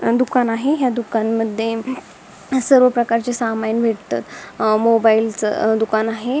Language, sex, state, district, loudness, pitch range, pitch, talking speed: Marathi, female, Maharashtra, Dhule, -18 LUFS, 220-250 Hz, 225 Hz, 110 wpm